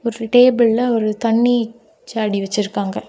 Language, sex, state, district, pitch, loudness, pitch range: Tamil, female, Tamil Nadu, Kanyakumari, 225 Hz, -16 LUFS, 210-240 Hz